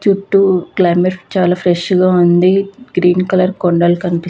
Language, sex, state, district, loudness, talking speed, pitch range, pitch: Telugu, female, Andhra Pradesh, Visakhapatnam, -13 LUFS, 155 wpm, 175-195 Hz, 185 Hz